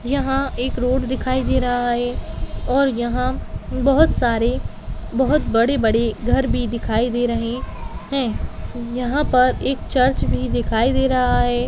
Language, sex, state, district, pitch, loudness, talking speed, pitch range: Hindi, female, Bihar, Madhepura, 250 Hz, -20 LUFS, 145 wpm, 240-265 Hz